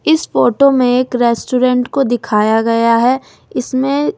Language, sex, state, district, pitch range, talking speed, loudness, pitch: Hindi, female, Delhi, New Delhi, 235-265 Hz, 145 wpm, -13 LUFS, 250 Hz